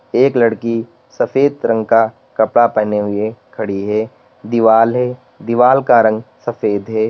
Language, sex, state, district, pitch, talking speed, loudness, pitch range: Hindi, male, Uttar Pradesh, Lalitpur, 115 Hz, 145 wpm, -15 LUFS, 110-125 Hz